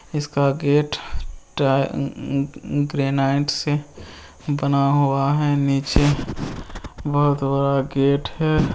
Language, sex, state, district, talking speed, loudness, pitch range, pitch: Hindi, male, Bihar, Muzaffarpur, 105 wpm, -21 LUFS, 135-145 Hz, 140 Hz